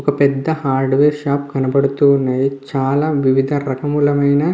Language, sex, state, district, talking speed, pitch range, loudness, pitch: Telugu, male, Andhra Pradesh, Visakhapatnam, 130 wpm, 135-145 Hz, -16 LUFS, 140 Hz